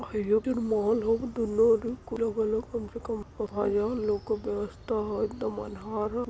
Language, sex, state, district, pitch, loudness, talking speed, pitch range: Hindi, female, Uttar Pradesh, Varanasi, 220 Hz, -29 LUFS, 85 wpm, 210-230 Hz